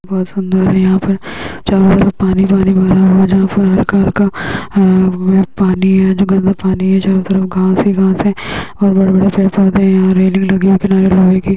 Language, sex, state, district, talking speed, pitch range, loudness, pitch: Hindi, female, Uttar Pradesh, Hamirpur, 220 wpm, 190-195 Hz, -11 LUFS, 190 Hz